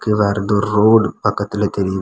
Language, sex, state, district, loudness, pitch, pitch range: Tamil, male, Tamil Nadu, Kanyakumari, -16 LUFS, 105 Hz, 100-105 Hz